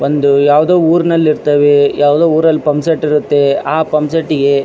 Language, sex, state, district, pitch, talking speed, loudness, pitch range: Kannada, male, Karnataka, Dharwad, 150 Hz, 155 wpm, -11 LUFS, 145-160 Hz